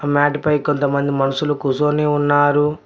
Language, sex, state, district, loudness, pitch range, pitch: Telugu, male, Telangana, Mahabubabad, -17 LUFS, 145-150 Hz, 145 Hz